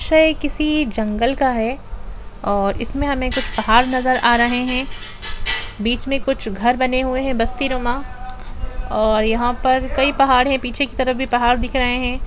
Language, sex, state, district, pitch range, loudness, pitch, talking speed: Hindi, female, Jharkhand, Jamtara, 240-270 Hz, -18 LUFS, 255 Hz, 180 wpm